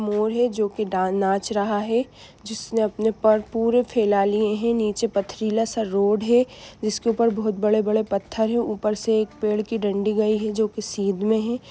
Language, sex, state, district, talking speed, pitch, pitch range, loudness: Hindi, female, Jharkhand, Sahebganj, 200 wpm, 215 Hz, 210-225 Hz, -22 LUFS